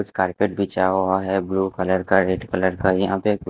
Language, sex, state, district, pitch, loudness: Hindi, male, Himachal Pradesh, Shimla, 95 Hz, -21 LUFS